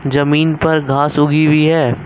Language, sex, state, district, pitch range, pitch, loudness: Hindi, male, Uttar Pradesh, Lucknow, 145-160 Hz, 150 Hz, -13 LUFS